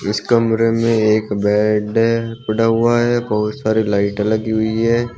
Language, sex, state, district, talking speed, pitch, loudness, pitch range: Hindi, male, Uttar Pradesh, Shamli, 160 wpm, 110 Hz, -16 LUFS, 105-115 Hz